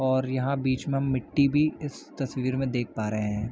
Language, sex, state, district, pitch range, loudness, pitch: Hindi, male, Chhattisgarh, Bilaspur, 125-140 Hz, -27 LUFS, 130 Hz